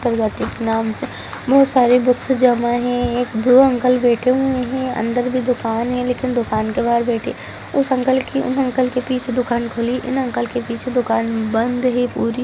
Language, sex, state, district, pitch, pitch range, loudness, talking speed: Hindi, female, Bihar, Sitamarhi, 245 Hz, 235-255 Hz, -18 LUFS, 185 wpm